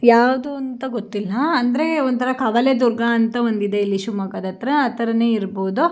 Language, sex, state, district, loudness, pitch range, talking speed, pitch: Kannada, female, Karnataka, Shimoga, -19 LUFS, 220-260 Hz, 130 wpm, 235 Hz